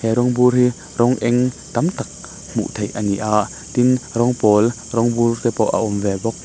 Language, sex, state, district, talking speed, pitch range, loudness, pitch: Mizo, male, Mizoram, Aizawl, 225 wpm, 110-125 Hz, -18 LUFS, 115 Hz